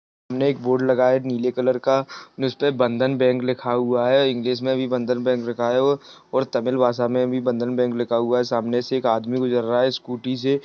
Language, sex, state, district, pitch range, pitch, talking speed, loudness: Hindi, male, Maharashtra, Solapur, 120-130 Hz, 125 Hz, 225 wpm, -21 LUFS